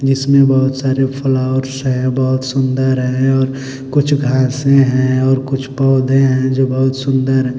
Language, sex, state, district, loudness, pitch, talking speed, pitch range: Hindi, male, Bihar, Kaimur, -14 LUFS, 130 Hz, 160 wpm, 130-135 Hz